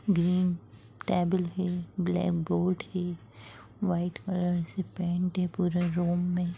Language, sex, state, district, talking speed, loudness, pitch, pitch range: Hindi, female, Chhattisgarh, Rajnandgaon, 120 wpm, -30 LUFS, 175 Hz, 175-180 Hz